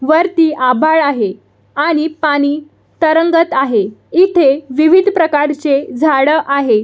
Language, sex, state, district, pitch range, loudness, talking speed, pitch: Marathi, female, Maharashtra, Solapur, 275-325 Hz, -13 LUFS, 105 wpm, 300 Hz